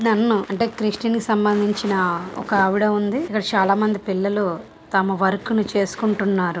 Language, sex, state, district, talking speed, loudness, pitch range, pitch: Telugu, female, Andhra Pradesh, Guntur, 120 wpm, -20 LUFS, 195-215 Hz, 205 Hz